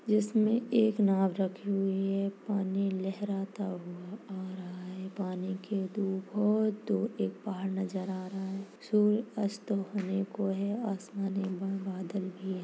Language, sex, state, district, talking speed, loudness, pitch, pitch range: Hindi, female, Chhattisgarh, Bastar, 155 wpm, -33 LUFS, 195 Hz, 190-210 Hz